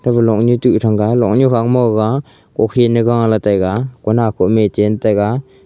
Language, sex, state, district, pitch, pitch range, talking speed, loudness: Wancho, male, Arunachal Pradesh, Longding, 115 Hz, 110-120 Hz, 170 wpm, -14 LUFS